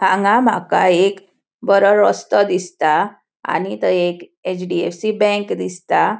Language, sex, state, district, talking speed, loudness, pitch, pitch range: Konkani, female, Goa, North and South Goa, 115 wpm, -17 LUFS, 190 Hz, 180-205 Hz